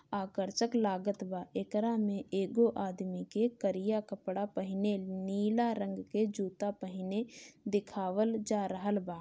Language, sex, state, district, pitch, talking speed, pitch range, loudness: Bhojpuri, female, Bihar, Gopalganj, 205 Hz, 130 wpm, 190-215 Hz, -35 LUFS